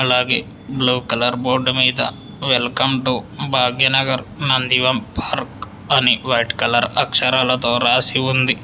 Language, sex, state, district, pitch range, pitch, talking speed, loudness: Telugu, male, Telangana, Hyderabad, 125-130 Hz, 130 Hz, 110 wpm, -17 LUFS